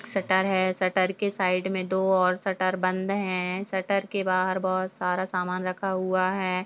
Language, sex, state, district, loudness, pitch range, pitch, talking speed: Hindi, female, Uttarakhand, Tehri Garhwal, -26 LUFS, 185-190 Hz, 185 Hz, 180 wpm